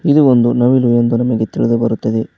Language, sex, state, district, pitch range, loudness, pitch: Kannada, male, Karnataka, Koppal, 115-125 Hz, -13 LUFS, 120 Hz